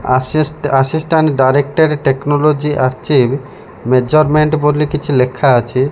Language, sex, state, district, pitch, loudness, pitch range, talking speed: Odia, male, Odisha, Malkangiri, 145 Hz, -13 LUFS, 130-155 Hz, 100 wpm